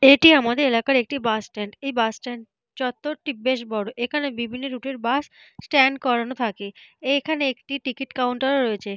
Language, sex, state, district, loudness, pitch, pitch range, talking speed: Bengali, female, Jharkhand, Jamtara, -22 LUFS, 255 Hz, 235-275 Hz, 180 wpm